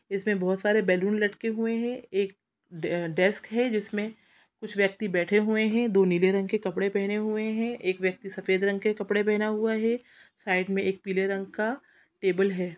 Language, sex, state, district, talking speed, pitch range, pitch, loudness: Hindi, female, Chhattisgarh, Sukma, 190 wpm, 190-215 Hz, 205 Hz, -27 LUFS